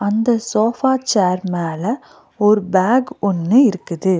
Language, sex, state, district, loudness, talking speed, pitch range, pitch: Tamil, female, Tamil Nadu, Nilgiris, -17 LUFS, 115 wpm, 185-240 Hz, 205 Hz